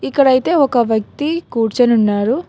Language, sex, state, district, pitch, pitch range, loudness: Telugu, female, Telangana, Hyderabad, 245 Hz, 220-285 Hz, -15 LUFS